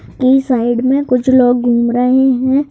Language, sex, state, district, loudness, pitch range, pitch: Hindi, male, Madhya Pradesh, Bhopal, -12 LUFS, 245-265 Hz, 255 Hz